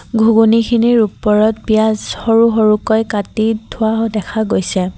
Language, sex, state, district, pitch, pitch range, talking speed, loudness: Assamese, female, Assam, Kamrup Metropolitan, 220 Hz, 215-225 Hz, 120 wpm, -14 LUFS